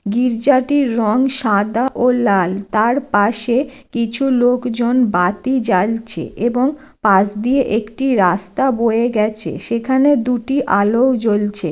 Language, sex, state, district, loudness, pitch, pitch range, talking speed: Bengali, female, West Bengal, Jalpaiguri, -16 LUFS, 235 Hz, 205-260 Hz, 115 wpm